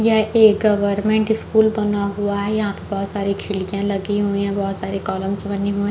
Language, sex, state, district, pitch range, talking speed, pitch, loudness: Hindi, female, Chhattisgarh, Balrampur, 200-210 Hz, 215 wpm, 200 Hz, -19 LUFS